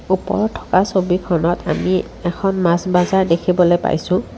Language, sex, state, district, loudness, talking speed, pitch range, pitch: Assamese, female, Assam, Kamrup Metropolitan, -17 LUFS, 125 wpm, 175-190 Hz, 180 Hz